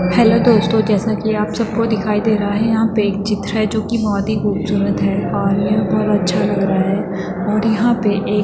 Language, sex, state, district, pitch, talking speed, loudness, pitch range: Hindi, female, Uttarakhand, Tehri Garhwal, 210 Hz, 240 wpm, -16 LUFS, 200-220 Hz